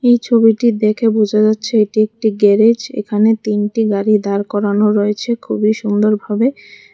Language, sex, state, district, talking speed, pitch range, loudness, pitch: Bengali, female, Tripura, West Tripura, 145 wpm, 210-230 Hz, -14 LUFS, 215 Hz